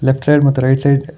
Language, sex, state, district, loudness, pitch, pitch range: Kannada, male, Karnataka, Bangalore, -13 LUFS, 140 Hz, 135-145 Hz